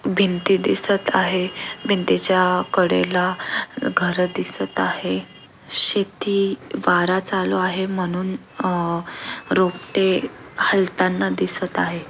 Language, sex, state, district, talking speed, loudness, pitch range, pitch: Marathi, female, Maharashtra, Aurangabad, 90 wpm, -20 LUFS, 175-190 Hz, 185 Hz